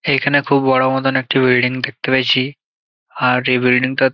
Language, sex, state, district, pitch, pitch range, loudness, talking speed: Bengali, male, West Bengal, Jalpaiguri, 130 Hz, 125-135 Hz, -15 LUFS, 190 wpm